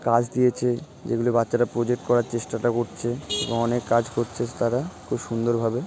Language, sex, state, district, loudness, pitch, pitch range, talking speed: Bengali, male, West Bengal, Malda, -24 LUFS, 120 Hz, 115-120 Hz, 155 wpm